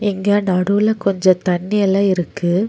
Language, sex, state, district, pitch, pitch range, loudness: Tamil, female, Tamil Nadu, Nilgiris, 195 Hz, 185-205 Hz, -17 LUFS